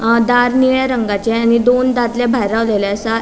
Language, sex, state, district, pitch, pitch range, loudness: Konkani, female, Goa, North and South Goa, 235 Hz, 225-245 Hz, -14 LUFS